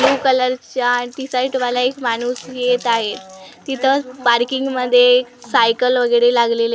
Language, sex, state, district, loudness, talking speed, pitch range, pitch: Marathi, female, Maharashtra, Gondia, -17 LUFS, 150 wpm, 240-255 Hz, 250 Hz